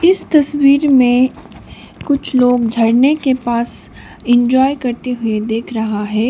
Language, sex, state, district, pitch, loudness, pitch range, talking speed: Hindi, female, Sikkim, Gangtok, 250 Hz, -14 LUFS, 235-275 Hz, 135 wpm